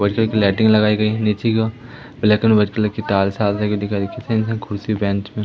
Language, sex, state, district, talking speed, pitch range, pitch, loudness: Hindi, female, Madhya Pradesh, Umaria, 130 wpm, 100-110 Hz, 105 Hz, -18 LUFS